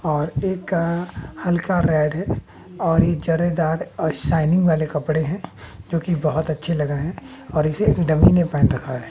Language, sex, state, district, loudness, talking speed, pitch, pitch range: Hindi, male, Bihar, West Champaran, -21 LUFS, 180 wpm, 160 Hz, 155-170 Hz